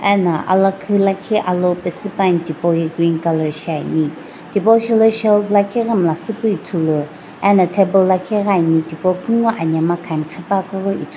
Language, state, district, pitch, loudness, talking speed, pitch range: Sumi, Nagaland, Dimapur, 185 Hz, -16 LUFS, 165 wpm, 165-200 Hz